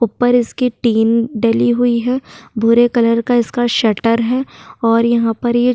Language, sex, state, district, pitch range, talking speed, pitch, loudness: Hindi, female, Maharashtra, Chandrapur, 230-245 Hz, 175 wpm, 235 Hz, -15 LUFS